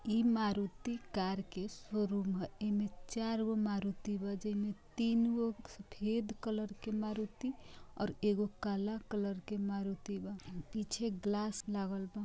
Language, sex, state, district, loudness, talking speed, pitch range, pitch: Bhojpuri, female, Bihar, Gopalganj, -38 LUFS, 125 wpm, 200-220 Hz, 210 Hz